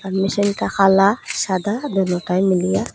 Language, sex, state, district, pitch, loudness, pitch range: Bengali, female, Assam, Hailakandi, 195 Hz, -18 LUFS, 190-200 Hz